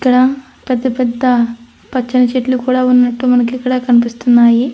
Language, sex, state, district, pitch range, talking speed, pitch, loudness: Telugu, female, Andhra Pradesh, Anantapur, 240-255 Hz, 115 wpm, 250 Hz, -13 LUFS